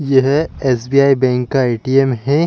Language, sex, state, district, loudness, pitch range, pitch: Hindi, male, Chhattisgarh, Bilaspur, -15 LUFS, 130-140 Hz, 135 Hz